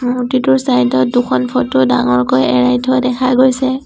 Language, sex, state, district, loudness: Assamese, female, Assam, Sonitpur, -13 LUFS